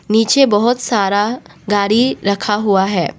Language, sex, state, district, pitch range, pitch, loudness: Hindi, female, Arunachal Pradesh, Papum Pare, 200-230 Hz, 210 Hz, -15 LUFS